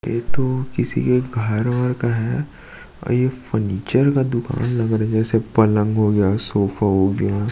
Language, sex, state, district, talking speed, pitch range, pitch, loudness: Hindi, male, Chhattisgarh, Sukma, 185 wpm, 105-125 Hz, 115 Hz, -20 LUFS